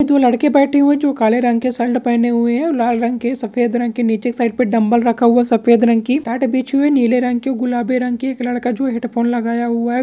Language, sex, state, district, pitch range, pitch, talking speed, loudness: Hindi, male, Bihar, Purnia, 235-255 Hz, 245 Hz, 300 wpm, -16 LUFS